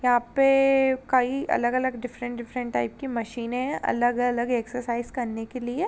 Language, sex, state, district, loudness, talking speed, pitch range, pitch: Hindi, female, Uttar Pradesh, Jalaun, -25 LUFS, 145 wpm, 240-260 Hz, 245 Hz